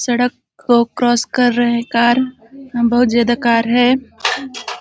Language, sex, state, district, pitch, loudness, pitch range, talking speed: Hindi, female, Chhattisgarh, Balrampur, 240 Hz, -15 LUFS, 235-250 Hz, 135 wpm